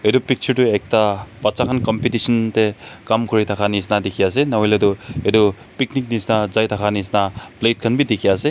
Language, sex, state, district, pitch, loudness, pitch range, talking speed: Nagamese, male, Nagaland, Kohima, 110 Hz, -18 LUFS, 105-120 Hz, 190 wpm